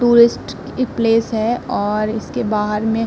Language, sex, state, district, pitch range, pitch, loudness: Hindi, female, Uttar Pradesh, Muzaffarnagar, 215-235 Hz, 225 Hz, -17 LUFS